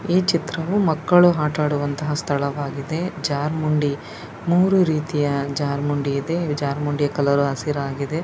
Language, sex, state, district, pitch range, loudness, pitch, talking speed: Kannada, female, Karnataka, Dakshina Kannada, 140-165 Hz, -21 LUFS, 150 Hz, 110 wpm